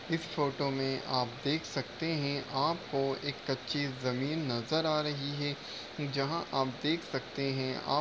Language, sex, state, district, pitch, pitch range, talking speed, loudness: Hindi, male, Uttar Pradesh, Deoria, 140 Hz, 135-150 Hz, 165 wpm, -34 LUFS